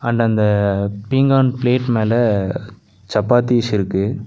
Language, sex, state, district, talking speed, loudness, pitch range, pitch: Tamil, male, Tamil Nadu, Nilgiris, 100 wpm, -17 LUFS, 100-125 Hz, 115 Hz